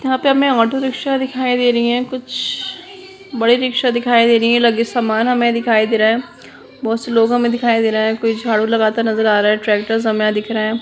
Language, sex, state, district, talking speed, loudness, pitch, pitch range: Hindi, female, Bihar, Purnia, 255 wpm, -15 LUFS, 235 Hz, 225-250 Hz